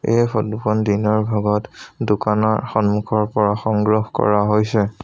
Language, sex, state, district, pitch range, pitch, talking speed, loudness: Assamese, male, Assam, Sonitpur, 105-110 Hz, 110 Hz, 130 wpm, -19 LUFS